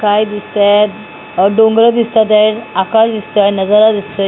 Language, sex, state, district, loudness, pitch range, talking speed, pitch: Marathi, female, Maharashtra, Mumbai Suburban, -11 LUFS, 205-220 Hz, 140 wpm, 215 Hz